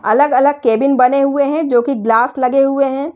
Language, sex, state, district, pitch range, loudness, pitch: Hindi, female, Uttar Pradesh, Shamli, 250-280 Hz, -13 LUFS, 275 Hz